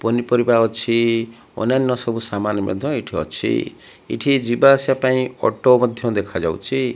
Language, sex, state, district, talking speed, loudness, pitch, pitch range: Odia, male, Odisha, Malkangiri, 140 wpm, -19 LUFS, 120 Hz, 115-130 Hz